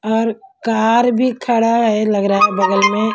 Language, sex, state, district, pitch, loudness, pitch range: Hindi, female, Maharashtra, Mumbai Suburban, 220 Hz, -15 LUFS, 210-235 Hz